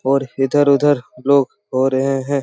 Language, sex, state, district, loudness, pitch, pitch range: Hindi, male, Chhattisgarh, Raigarh, -17 LUFS, 135 Hz, 130-140 Hz